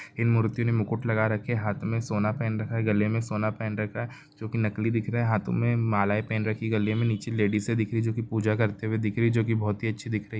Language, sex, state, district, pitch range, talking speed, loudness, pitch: Hindi, male, Bihar, Muzaffarpur, 110-115 Hz, 300 wpm, -27 LUFS, 110 Hz